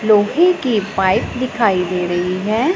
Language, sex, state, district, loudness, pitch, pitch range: Hindi, female, Punjab, Pathankot, -16 LUFS, 210 Hz, 180-250 Hz